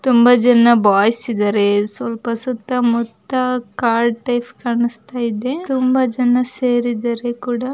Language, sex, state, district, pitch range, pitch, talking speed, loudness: Kannada, female, Karnataka, Mysore, 235-250 Hz, 240 Hz, 110 wpm, -16 LUFS